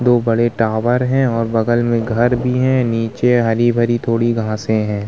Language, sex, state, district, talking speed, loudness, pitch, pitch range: Hindi, male, Uttar Pradesh, Muzaffarnagar, 175 wpm, -16 LUFS, 120 Hz, 115-120 Hz